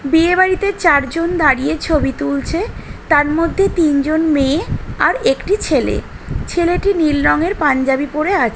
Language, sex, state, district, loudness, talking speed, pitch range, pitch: Bengali, female, West Bengal, North 24 Parganas, -15 LUFS, 135 wpm, 290-350 Hz, 315 Hz